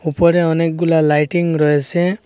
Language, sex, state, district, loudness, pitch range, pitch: Bengali, male, Assam, Hailakandi, -15 LUFS, 155-175 Hz, 165 Hz